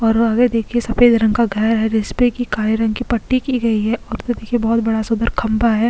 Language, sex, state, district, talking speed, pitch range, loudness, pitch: Hindi, female, Goa, North and South Goa, 255 wpm, 220-240 Hz, -17 LUFS, 230 Hz